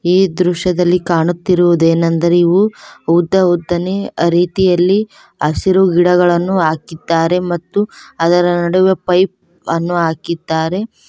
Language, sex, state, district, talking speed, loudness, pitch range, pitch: Kannada, female, Karnataka, Koppal, 85 wpm, -14 LUFS, 170-185 Hz, 175 Hz